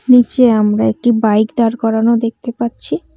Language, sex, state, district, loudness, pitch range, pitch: Bengali, female, West Bengal, Cooch Behar, -14 LUFS, 220-240 Hz, 230 Hz